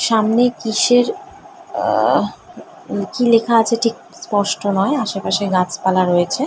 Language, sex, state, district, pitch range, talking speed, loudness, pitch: Bengali, female, West Bengal, Kolkata, 200-245 Hz, 120 wpm, -17 LUFS, 230 Hz